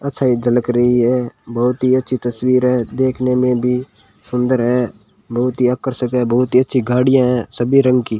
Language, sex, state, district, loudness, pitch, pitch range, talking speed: Hindi, male, Rajasthan, Bikaner, -16 LUFS, 125 Hz, 120-130 Hz, 190 wpm